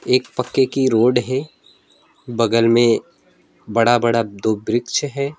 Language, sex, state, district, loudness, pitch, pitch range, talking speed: Hindi, male, West Bengal, Alipurduar, -18 LUFS, 120 Hz, 115-130 Hz, 135 wpm